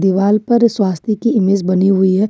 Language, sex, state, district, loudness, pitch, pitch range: Hindi, female, Jharkhand, Ranchi, -14 LUFS, 200 Hz, 190-215 Hz